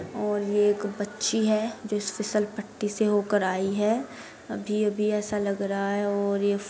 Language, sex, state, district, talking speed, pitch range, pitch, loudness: Hindi, female, Bihar, Gopalganj, 190 wpm, 200-210 Hz, 205 Hz, -27 LUFS